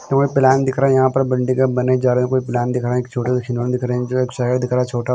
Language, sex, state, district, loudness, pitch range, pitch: Hindi, male, Punjab, Kapurthala, -18 LUFS, 125-130 Hz, 125 Hz